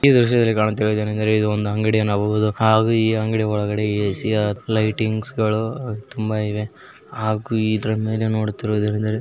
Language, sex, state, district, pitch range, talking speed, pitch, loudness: Kannada, male, Karnataka, Belgaum, 105-110 Hz, 145 wpm, 110 Hz, -20 LUFS